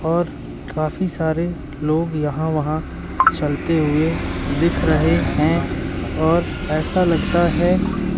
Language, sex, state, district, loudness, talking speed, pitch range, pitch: Hindi, male, Madhya Pradesh, Katni, -20 LUFS, 110 wpm, 150-175 Hz, 160 Hz